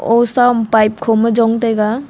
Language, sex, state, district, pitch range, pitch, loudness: Wancho, female, Arunachal Pradesh, Longding, 225-240 Hz, 230 Hz, -13 LUFS